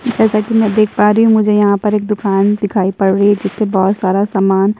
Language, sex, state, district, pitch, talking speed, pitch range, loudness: Hindi, female, Uttar Pradesh, Jyotiba Phule Nagar, 210 Hz, 265 wpm, 195-215 Hz, -13 LUFS